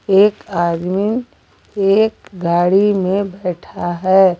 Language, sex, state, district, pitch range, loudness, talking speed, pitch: Hindi, female, Jharkhand, Garhwa, 175-200 Hz, -16 LUFS, 95 wpm, 190 Hz